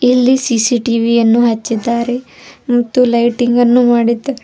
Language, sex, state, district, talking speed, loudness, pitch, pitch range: Kannada, female, Karnataka, Bidar, 120 wpm, -13 LUFS, 240 Hz, 235-250 Hz